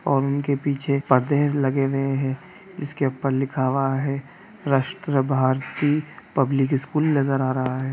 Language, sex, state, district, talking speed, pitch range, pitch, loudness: Hindi, male, Bihar, East Champaran, 145 wpm, 135-145 Hz, 135 Hz, -23 LUFS